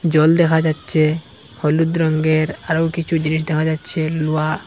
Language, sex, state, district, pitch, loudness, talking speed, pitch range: Bengali, male, Assam, Hailakandi, 155 Hz, -18 LUFS, 140 wpm, 155-160 Hz